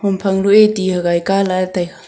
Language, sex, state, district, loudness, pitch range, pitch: Wancho, female, Arunachal Pradesh, Longding, -14 LUFS, 180-195 Hz, 190 Hz